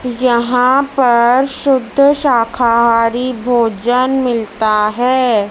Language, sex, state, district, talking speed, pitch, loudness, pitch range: Hindi, female, Madhya Pradesh, Dhar, 75 wpm, 245 Hz, -13 LUFS, 230-260 Hz